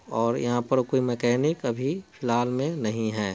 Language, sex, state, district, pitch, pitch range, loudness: Hindi, male, Bihar, Muzaffarpur, 120 Hz, 115-130 Hz, -26 LUFS